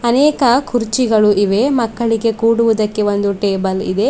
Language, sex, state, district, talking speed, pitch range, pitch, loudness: Kannada, female, Karnataka, Bidar, 115 wpm, 205-240 Hz, 225 Hz, -15 LUFS